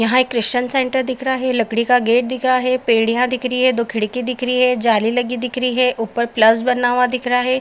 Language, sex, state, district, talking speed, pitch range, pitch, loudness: Hindi, female, Maharashtra, Aurangabad, 270 wpm, 235-255 Hz, 250 Hz, -17 LUFS